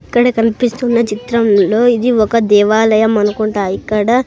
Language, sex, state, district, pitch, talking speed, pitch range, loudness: Telugu, male, Andhra Pradesh, Sri Satya Sai, 225 Hz, 110 wpm, 210-240 Hz, -13 LUFS